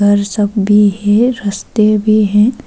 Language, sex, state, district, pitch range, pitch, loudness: Hindi, female, Arunachal Pradesh, Papum Pare, 205-215 Hz, 210 Hz, -12 LUFS